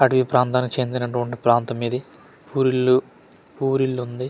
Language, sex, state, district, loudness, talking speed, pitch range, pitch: Telugu, male, Andhra Pradesh, Manyam, -21 LUFS, 100 wpm, 125-130 Hz, 125 Hz